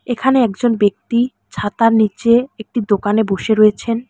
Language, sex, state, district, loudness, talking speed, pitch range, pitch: Bengali, female, West Bengal, Alipurduar, -16 LUFS, 130 wpm, 210-240 Hz, 225 Hz